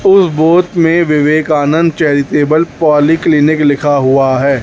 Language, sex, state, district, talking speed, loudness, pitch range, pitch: Hindi, male, Chhattisgarh, Raipur, 115 wpm, -10 LUFS, 145-165 Hz, 155 Hz